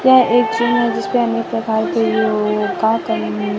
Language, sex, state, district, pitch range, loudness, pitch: Hindi, female, Chhattisgarh, Raipur, 210-235 Hz, -16 LUFS, 225 Hz